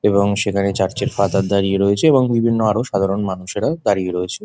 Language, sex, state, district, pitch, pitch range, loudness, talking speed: Bengali, male, West Bengal, Jhargram, 100 Hz, 95-115 Hz, -18 LUFS, 160 wpm